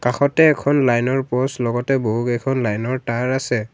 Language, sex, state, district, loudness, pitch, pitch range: Assamese, male, Assam, Kamrup Metropolitan, -19 LUFS, 125 Hz, 120-135 Hz